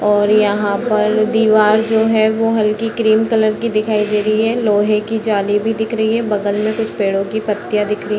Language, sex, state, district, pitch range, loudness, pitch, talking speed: Hindi, female, Bihar, Sitamarhi, 210-220 Hz, -15 LUFS, 215 Hz, 240 wpm